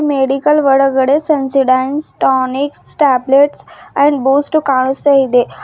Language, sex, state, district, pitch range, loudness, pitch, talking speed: Kannada, female, Karnataka, Bidar, 265-290 Hz, -13 LUFS, 275 Hz, 95 wpm